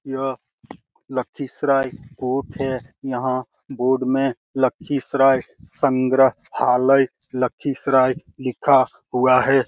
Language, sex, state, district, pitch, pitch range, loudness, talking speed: Hindi, male, Bihar, Lakhisarai, 130 Hz, 130-135 Hz, -20 LUFS, 80 wpm